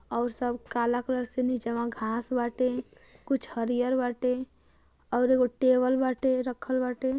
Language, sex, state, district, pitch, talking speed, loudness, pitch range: Hindi, female, Uttar Pradesh, Gorakhpur, 250 Hz, 140 wpm, -28 LUFS, 240-255 Hz